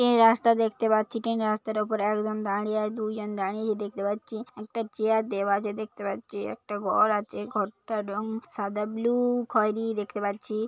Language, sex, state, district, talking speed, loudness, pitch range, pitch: Bengali, female, West Bengal, Paschim Medinipur, 170 wpm, -28 LUFS, 210-220 Hz, 215 Hz